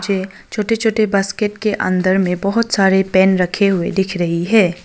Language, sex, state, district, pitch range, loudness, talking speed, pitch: Hindi, female, Arunachal Pradesh, Longding, 185-210 Hz, -16 LUFS, 185 wpm, 195 Hz